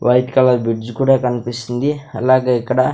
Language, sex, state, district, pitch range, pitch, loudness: Telugu, male, Andhra Pradesh, Sri Satya Sai, 120-130 Hz, 125 Hz, -16 LUFS